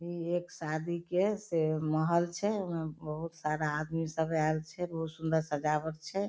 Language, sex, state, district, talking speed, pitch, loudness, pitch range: Maithili, female, Bihar, Darbhanga, 170 wpm, 160 Hz, -33 LUFS, 155-175 Hz